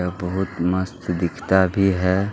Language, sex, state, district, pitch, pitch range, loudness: Hindi, male, Chhattisgarh, Kabirdham, 95 Hz, 90-95 Hz, -21 LUFS